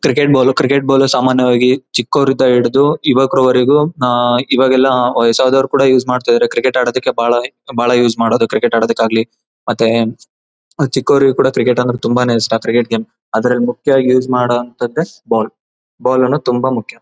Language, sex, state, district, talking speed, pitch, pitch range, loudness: Kannada, male, Karnataka, Bellary, 145 wpm, 125 Hz, 120-130 Hz, -13 LUFS